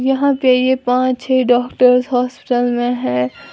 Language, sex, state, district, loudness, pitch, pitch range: Hindi, female, Uttar Pradesh, Lalitpur, -15 LUFS, 250 Hz, 245-255 Hz